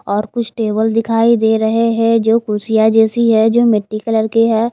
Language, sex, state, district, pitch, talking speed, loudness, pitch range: Hindi, female, Himachal Pradesh, Shimla, 225 Hz, 205 wpm, -14 LUFS, 220-230 Hz